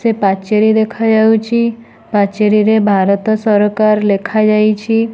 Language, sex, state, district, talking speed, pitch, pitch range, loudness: Odia, female, Odisha, Nuapada, 80 wpm, 215 Hz, 205-220 Hz, -12 LUFS